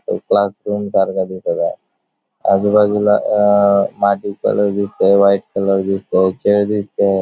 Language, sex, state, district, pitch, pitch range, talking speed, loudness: Marathi, male, Maharashtra, Dhule, 100 Hz, 95-105 Hz, 125 wpm, -16 LUFS